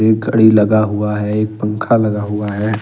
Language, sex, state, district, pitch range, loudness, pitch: Hindi, male, Jharkhand, Ranchi, 105-110 Hz, -15 LUFS, 105 Hz